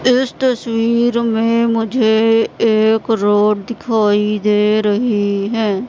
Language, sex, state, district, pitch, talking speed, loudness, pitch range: Hindi, female, Madhya Pradesh, Katni, 225 Hz, 100 wpm, -15 LUFS, 210-235 Hz